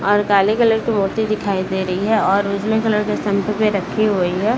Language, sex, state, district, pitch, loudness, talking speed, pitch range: Hindi, female, Bihar, Saran, 205 Hz, -18 LUFS, 235 wpm, 195-220 Hz